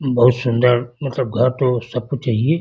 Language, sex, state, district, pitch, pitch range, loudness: Hindi, male, Uttar Pradesh, Gorakhpur, 125 Hz, 120-135 Hz, -18 LUFS